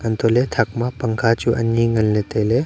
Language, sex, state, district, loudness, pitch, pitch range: Wancho, male, Arunachal Pradesh, Longding, -19 LUFS, 115 Hz, 110-120 Hz